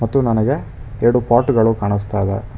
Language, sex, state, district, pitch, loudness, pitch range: Kannada, male, Karnataka, Bangalore, 115 Hz, -17 LUFS, 105-120 Hz